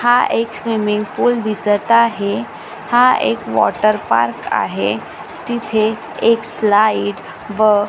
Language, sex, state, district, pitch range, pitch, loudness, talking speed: Marathi, female, Maharashtra, Gondia, 210-230 Hz, 215 Hz, -16 LUFS, 115 wpm